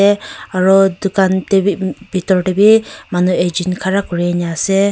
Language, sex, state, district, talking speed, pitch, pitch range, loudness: Nagamese, female, Nagaland, Kohima, 145 wpm, 190 Hz, 180-200 Hz, -15 LUFS